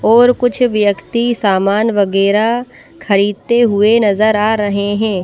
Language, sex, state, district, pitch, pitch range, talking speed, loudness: Hindi, female, Madhya Pradesh, Bhopal, 215 Hz, 200-235 Hz, 125 wpm, -13 LUFS